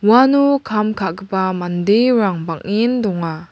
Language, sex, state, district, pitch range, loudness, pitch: Garo, female, Meghalaya, West Garo Hills, 180-235 Hz, -16 LUFS, 200 Hz